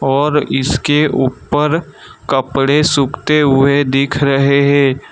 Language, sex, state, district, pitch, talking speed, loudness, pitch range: Hindi, male, Gujarat, Valsad, 140 Hz, 105 wpm, -13 LUFS, 135-150 Hz